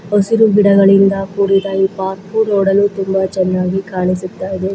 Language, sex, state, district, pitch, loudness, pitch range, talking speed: Kannada, female, Karnataka, Bellary, 195 Hz, -14 LUFS, 190-200 Hz, 125 wpm